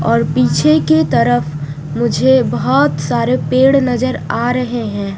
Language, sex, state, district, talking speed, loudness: Hindi, female, Punjab, Fazilka, 140 wpm, -14 LUFS